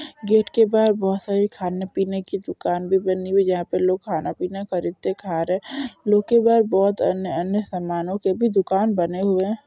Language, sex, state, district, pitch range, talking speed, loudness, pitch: Hindi, female, Maharashtra, Sindhudurg, 185-210 Hz, 185 wpm, -21 LUFS, 195 Hz